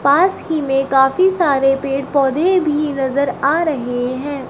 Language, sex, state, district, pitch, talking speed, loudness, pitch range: Hindi, female, Uttar Pradesh, Shamli, 280 Hz, 160 wpm, -16 LUFS, 270-315 Hz